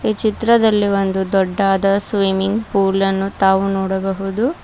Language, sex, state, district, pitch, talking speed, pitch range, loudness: Kannada, female, Karnataka, Bidar, 195 Hz, 115 wpm, 195-215 Hz, -17 LUFS